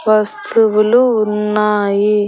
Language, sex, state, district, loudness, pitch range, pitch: Telugu, female, Andhra Pradesh, Annamaya, -13 LUFS, 210-215 Hz, 210 Hz